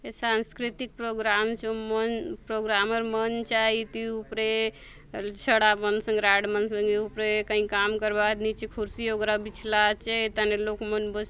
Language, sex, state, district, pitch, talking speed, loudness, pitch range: Halbi, female, Chhattisgarh, Bastar, 215 Hz, 180 wpm, -26 LUFS, 210-225 Hz